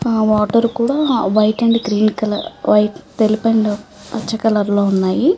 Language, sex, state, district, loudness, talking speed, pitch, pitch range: Telugu, female, Andhra Pradesh, Chittoor, -16 LUFS, 155 wpm, 215 Hz, 210-230 Hz